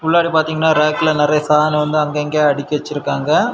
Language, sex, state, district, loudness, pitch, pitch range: Tamil, male, Tamil Nadu, Kanyakumari, -16 LUFS, 150 Hz, 150-155 Hz